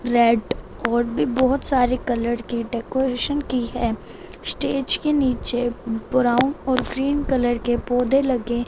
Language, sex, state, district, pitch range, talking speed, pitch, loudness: Hindi, female, Punjab, Fazilka, 240-265 Hz, 140 wpm, 245 Hz, -21 LUFS